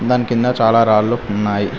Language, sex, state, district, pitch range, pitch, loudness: Telugu, male, Telangana, Mahabubabad, 105-120 Hz, 115 Hz, -15 LUFS